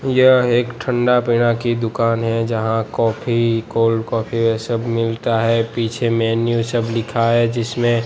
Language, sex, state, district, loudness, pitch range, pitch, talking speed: Hindi, male, Gujarat, Gandhinagar, -18 LUFS, 115-120 Hz, 115 Hz, 155 wpm